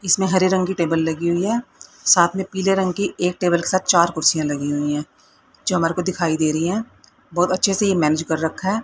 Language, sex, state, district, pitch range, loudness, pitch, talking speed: Hindi, female, Haryana, Rohtak, 165-195 Hz, -19 LUFS, 180 Hz, 245 wpm